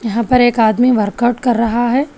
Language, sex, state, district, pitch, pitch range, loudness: Hindi, female, Telangana, Hyderabad, 240 Hz, 230-250 Hz, -14 LUFS